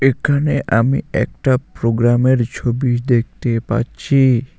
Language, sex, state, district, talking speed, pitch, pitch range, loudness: Bengali, male, West Bengal, Alipurduar, 90 wpm, 125 Hz, 120-135 Hz, -17 LUFS